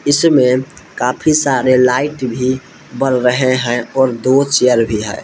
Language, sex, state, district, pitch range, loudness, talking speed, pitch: Hindi, male, Jharkhand, Palamu, 125-135 Hz, -14 LUFS, 150 wpm, 130 Hz